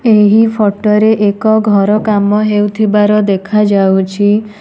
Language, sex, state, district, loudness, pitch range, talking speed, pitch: Odia, female, Odisha, Nuapada, -10 LUFS, 205-215 Hz, 105 wpm, 210 Hz